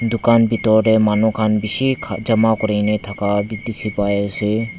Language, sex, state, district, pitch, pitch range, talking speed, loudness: Nagamese, male, Nagaland, Dimapur, 110 Hz, 105-115 Hz, 150 wpm, -17 LUFS